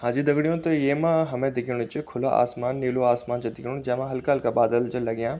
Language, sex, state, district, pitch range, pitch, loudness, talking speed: Garhwali, male, Uttarakhand, Tehri Garhwal, 120-140 Hz, 125 Hz, -25 LUFS, 200 wpm